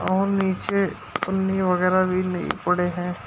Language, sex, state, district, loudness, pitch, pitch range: Hindi, male, Uttar Pradesh, Shamli, -23 LUFS, 185 Hz, 180-190 Hz